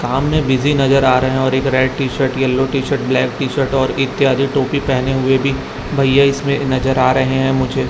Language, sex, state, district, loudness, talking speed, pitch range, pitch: Hindi, male, Chhattisgarh, Raipur, -15 LUFS, 245 wpm, 130-135 Hz, 135 Hz